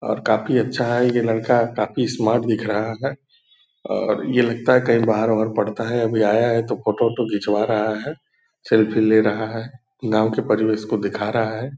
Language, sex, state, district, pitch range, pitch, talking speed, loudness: Hindi, male, Bihar, Purnia, 110-120 Hz, 110 Hz, 220 wpm, -20 LUFS